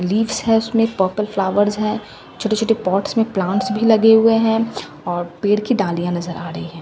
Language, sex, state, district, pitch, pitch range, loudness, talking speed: Hindi, female, Bihar, Katihar, 210 Hz, 190-225 Hz, -18 LUFS, 210 wpm